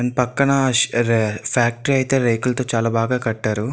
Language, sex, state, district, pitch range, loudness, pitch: Telugu, male, Andhra Pradesh, Visakhapatnam, 115-130 Hz, -19 LUFS, 120 Hz